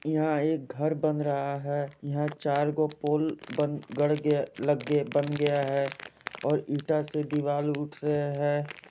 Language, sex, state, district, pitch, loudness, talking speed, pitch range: Hindi, male, Jharkhand, Jamtara, 145 Hz, -29 LUFS, 160 wpm, 145-150 Hz